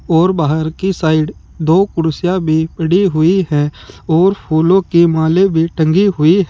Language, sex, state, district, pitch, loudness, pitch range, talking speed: Hindi, male, Uttar Pradesh, Saharanpur, 165 Hz, -13 LUFS, 160-185 Hz, 155 wpm